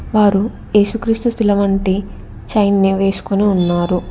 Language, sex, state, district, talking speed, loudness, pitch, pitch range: Telugu, female, Telangana, Hyderabad, 85 wpm, -15 LUFS, 200 Hz, 195-210 Hz